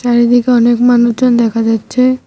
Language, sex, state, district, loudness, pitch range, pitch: Bengali, female, West Bengal, Cooch Behar, -11 LUFS, 235-245 Hz, 240 Hz